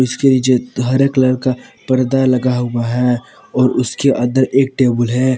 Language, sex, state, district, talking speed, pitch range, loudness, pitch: Hindi, male, Jharkhand, Palamu, 165 wpm, 125-130 Hz, -15 LUFS, 130 Hz